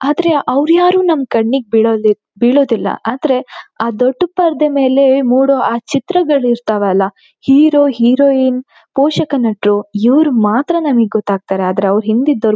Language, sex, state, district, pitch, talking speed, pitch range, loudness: Kannada, female, Karnataka, Shimoga, 260 Hz, 125 wpm, 225-285 Hz, -13 LUFS